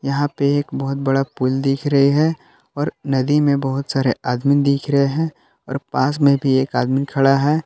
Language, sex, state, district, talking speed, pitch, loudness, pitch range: Hindi, male, Jharkhand, Palamu, 205 wpm, 140 Hz, -18 LUFS, 135-145 Hz